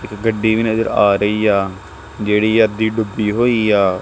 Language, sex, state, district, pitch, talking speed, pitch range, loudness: Punjabi, male, Punjab, Kapurthala, 105 Hz, 180 wpm, 105-110 Hz, -16 LUFS